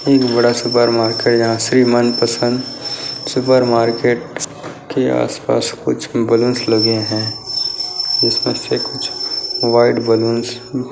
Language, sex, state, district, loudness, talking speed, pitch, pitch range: Hindi, male, Bihar, Kishanganj, -16 LUFS, 115 wpm, 120 Hz, 115-125 Hz